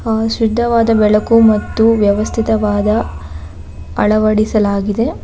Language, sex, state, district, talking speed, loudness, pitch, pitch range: Kannada, female, Karnataka, Bangalore, 70 wpm, -13 LUFS, 215 Hz, 205-225 Hz